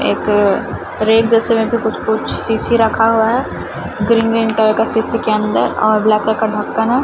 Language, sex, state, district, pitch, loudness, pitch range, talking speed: Hindi, female, Chhattisgarh, Raipur, 225 Hz, -15 LUFS, 215-225 Hz, 205 wpm